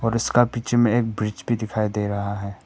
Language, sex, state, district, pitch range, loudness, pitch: Hindi, male, Arunachal Pradesh, Papum Pare, 105-120 Hz, -22 LUFS, 110 Hz